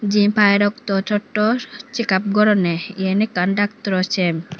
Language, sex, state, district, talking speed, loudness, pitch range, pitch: Chakma, female, Tripura, Unakoti, 130 wpm, -18 LUFS, 190-210 Hz, 205 Hz